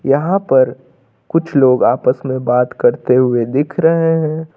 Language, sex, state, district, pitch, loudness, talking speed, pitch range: Hindi, male, Uttar Pradesh, Lucknow, 135 Hz, -14 LUFS, 155 wpm, 125-160 Hz